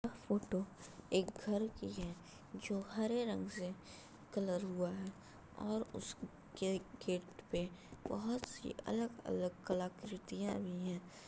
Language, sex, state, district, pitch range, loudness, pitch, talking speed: Hindi, female, Uttar Pradesh, Budaun, 180-215 Hz, -42 LUFS, 190 Hz, 120 wpm